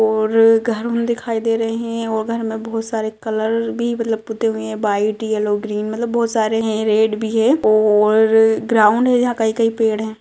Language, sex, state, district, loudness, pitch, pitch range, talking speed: Hindi, female, Bihar, Lakhisarai, -17 LUFS, 225 Hz, 220-230 Hz, 195 wpm